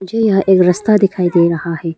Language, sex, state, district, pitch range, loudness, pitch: Hindi, female, Arunachal Pradesh, Lower Dibang Valley, 170-195 Hz, -13 LUFS, 180 Hz